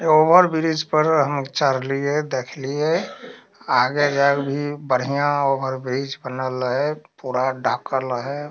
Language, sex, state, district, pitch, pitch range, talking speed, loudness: Maithili, male, Bihar, Darbhanga, 140 Hz, 130-150 Hz, 125 wpm, -21 LUFS